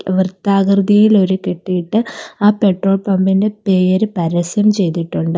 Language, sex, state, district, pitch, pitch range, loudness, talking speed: Malayalam, female, Kerala, Kollam, 195 Hz, 185-205 Hz, -14 LUFS, 100 wpm